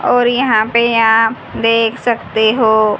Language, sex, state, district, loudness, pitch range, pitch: Hindi, female, Haryana, Jhajjar, -13 LUFS, 220-240 Hz, 230 Hz